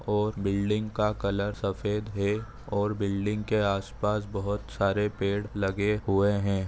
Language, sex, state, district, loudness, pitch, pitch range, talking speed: Hindi, male, Jharkhand, Sahebganj, -29 LUFS, 105 Hz, 100-105 Hz, 145 wpm